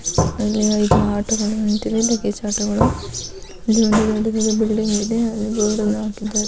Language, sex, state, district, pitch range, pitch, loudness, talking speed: Kannada, female, Karnataka, Chamarajanagar, 210-220 Hz, 215 Hz, -19 LUFS, 130 wpm